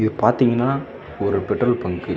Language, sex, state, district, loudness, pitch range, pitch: Tamil, male, Tamil Nadu, Namakkal, -20 LUFS, 100-125 Hz, 120 Hz